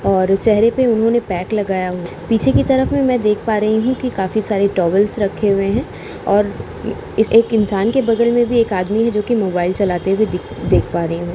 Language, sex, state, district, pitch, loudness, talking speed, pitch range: Hindi, female, Uttar Pradesh, Jalaun, 210 Hz, -16 LUFS, 220 wpm, 190-230 Hz